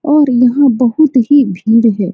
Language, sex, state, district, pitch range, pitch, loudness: Hindi, female, Bihar, Saran, 230-285 Hz, 250 Hz, -10 LUFS